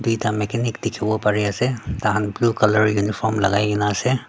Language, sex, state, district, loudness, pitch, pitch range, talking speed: Nagamese, female, Nagaland, Dimapur, -20 LUFS, 105 Hz, 105-115 Hz, 155 wpm